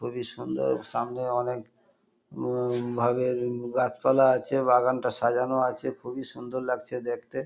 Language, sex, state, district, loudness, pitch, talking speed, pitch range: Bengali, male, West Bengal, Kolkata, -27 LUFS, 125 Hz, 120 wpm, 120-130 Hz